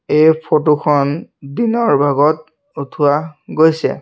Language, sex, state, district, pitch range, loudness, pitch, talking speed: Assamese, male, Assam, Sonitpur, 145-160 Hz, -15 LUFS, 155 Hz, 105 wpm